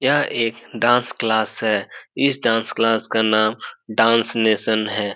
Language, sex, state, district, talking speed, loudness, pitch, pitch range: Hindi, male, Bihar, Supaul, 150 wpm, -19 LUFS, 115 Hz, 110-115 Hz